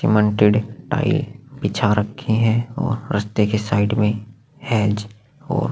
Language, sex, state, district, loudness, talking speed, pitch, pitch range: Hindi, male, Chhattisgarh, Sukma, -20 LUFS, 95 wpm, 110 Hz, 105-135 Hz